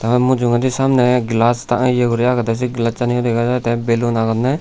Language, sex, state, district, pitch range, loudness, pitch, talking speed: Chakma, male, Tripura, Unakoti, 115-125 Hz, -16 LUFS, 120 Hz, 210 wpm